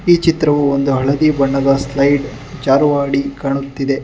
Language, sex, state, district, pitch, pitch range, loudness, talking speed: Kannada, male, Karnataka, Bangalore, 140 Hz, 135-145 Hz, -15 LUFS, 135 wpm